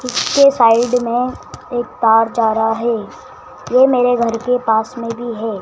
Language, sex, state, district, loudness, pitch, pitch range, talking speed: Hindi, male, Madhya Pradesh, Dhar, -15 LUFS, 235 Hz, 225-250 Hz, 170 wpm